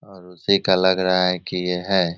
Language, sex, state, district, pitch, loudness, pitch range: Hindi, male, Bihar, Begusarai, 90 Hz, -20 LUFS, 90-95 Hz